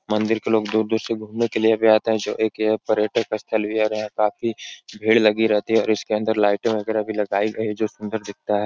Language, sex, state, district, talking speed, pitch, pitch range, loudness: Hindi, male, Uttar Pradesh, Etah, 265 wpm, 110 Hz, 105-110 Hz, -21 LUFS